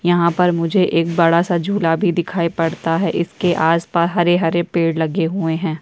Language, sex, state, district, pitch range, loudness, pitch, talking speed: Hindi, female, Uttar Pradesh, Jyotiba Phule Nagar, 165-175 Hz, -17 LUFS, 170 Hz, 185 wpm